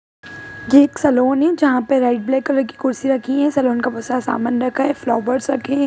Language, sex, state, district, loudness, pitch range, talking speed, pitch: Hindi, female, Bihar, Jahanabad, -17 LUFS, 245-275 Hz, 235 wpm, 260 Hz